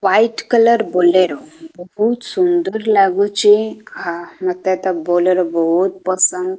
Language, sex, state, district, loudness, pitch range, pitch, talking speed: Odia, female, Odisha, Khordha, -16 LUFS, 180-230 Hz, 195 Hz, 100 wpm